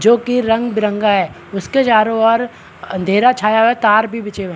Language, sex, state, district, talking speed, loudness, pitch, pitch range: Hindi, male, Chhattisgarh, Rajnandgaon, 210 wpm, -14 LUFS, 220 Hz, 205-230 Hz